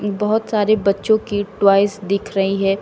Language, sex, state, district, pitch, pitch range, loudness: Hindi, female, Uttar Pradesh, Shamli, 205 Hz, 195-210 Hz, -18 LUFS